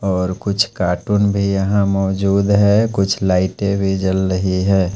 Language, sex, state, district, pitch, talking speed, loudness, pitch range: Hindi, male, Punjab, Pathankot, 95 Hz, 155 wpm, -17 LUFS, 95-100 Hz